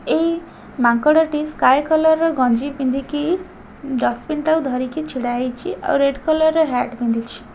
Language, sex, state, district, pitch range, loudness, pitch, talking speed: Odia, female, Odisha, Khordha, 255-315 Hz, -19 LUFS, 285 Hz, 150 wpm